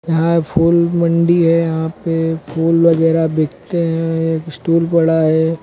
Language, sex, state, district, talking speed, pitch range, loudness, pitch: Hindi, male, Uttar Pradesh, Lucknow, 150 wpm, 160-170 Hz, -15 LUFS, 165 Hz